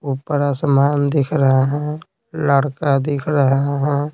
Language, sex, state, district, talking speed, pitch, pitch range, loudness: Hindi, male, Bihar, Patna, 130 wpm, 145 Hz, 140-145 Hz, -18 LUFS